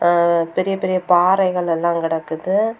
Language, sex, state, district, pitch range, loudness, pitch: Tamil, female, Tamil Nadu, Kanyakumari, 170-185 Hz, -18 LUFS, 175 Hz